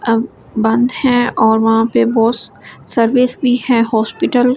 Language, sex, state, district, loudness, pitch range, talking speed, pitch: Hindi, female, Delhi, New Delhi, -14 LUFS, 225-250 Hz, 170 wpm, 235 Hz